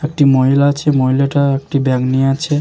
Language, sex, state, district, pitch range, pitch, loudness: Bengali, male, West Bengal, Jalpaiguri, 135-145 Hz, 140 Hz, -14 LUFS